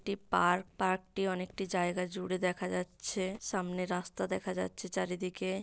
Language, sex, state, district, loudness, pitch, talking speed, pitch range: Bengali, female, West Bengal, Paschim Medinipur, -35 LUFS, 185 Hz, 150 wpm, 180-190 Hz